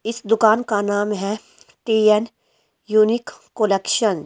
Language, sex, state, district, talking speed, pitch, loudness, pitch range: Hindi, female, Delhi, New Delhi, 125 wpm, 215 Hz, -19 LUFS, 205-225 Hz